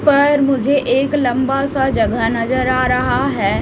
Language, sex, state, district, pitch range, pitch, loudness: Hindi, female, Haryana, Rohtak, 250-275 Hz, 265 Hz, -16 LUFS